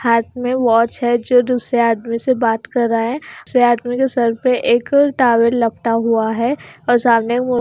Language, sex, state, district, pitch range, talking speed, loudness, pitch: Hindi, female, Bihar, Katihar, 230-250 Hz, 190 wpm, -16 LUFS, 240 Hz